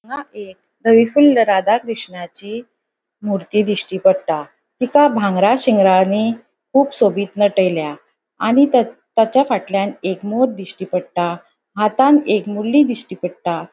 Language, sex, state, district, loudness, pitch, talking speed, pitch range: Konkani, female, Goa, North and South Goa, -16 LUFS, 210 Hz, 120 wpm, 190-240 Hz